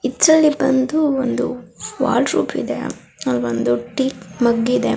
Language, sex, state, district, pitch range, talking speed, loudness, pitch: Kannada, female, Karnataka, Raichur, 185-270 Hz, 135 wpm, -18 LUFS, 260 Hz